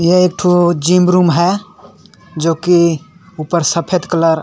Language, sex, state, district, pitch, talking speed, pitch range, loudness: Sadri, male, Chhattisgarh, Jashpur, 175 Hz, 150 wpm, 165-180 Hz, -13 LUFS